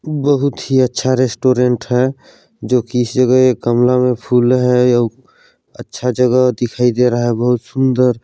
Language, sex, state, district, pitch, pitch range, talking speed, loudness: Hindi, male, Chhattisgarh, Balrampur, 125 Hz, 120-130 Hz, 165 wpm, -14 LUFS